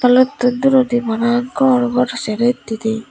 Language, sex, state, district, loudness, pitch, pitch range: Chakma, female, Tripura, Unakoti, -16 LUFS, 245 Hz, 235-250 Hz